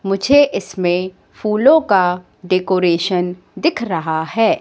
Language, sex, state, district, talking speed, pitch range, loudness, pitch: Hindi, female, Madhya Pradesh, Katni, 105 wpm, 180-225 Hz, -16 LUFS, 185 Hz